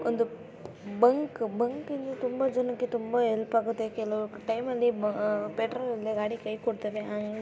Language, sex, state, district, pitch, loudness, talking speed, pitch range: Kannada, female, Karnataka, Raichur, 230 Hz, -30 LUFS, 135 wpm, 215-245 Hz